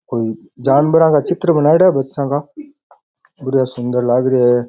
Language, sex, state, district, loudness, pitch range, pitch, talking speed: Rajasthani, male, Rajasthan, Nagaur, -15 LUFS, 125-160 Hz, 135 Hz, 165 wpm